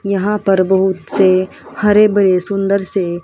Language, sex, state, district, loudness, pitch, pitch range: Hindi, female, Haryana, Rohtak, -14 LUFS, 195 Hz, 185-200 Hz